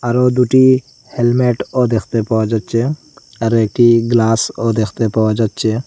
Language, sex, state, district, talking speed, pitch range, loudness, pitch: Bengali, male, Assam, Hailakandi, 125 wpm, 115-125 Hz, -14 LUFS, 115 Hz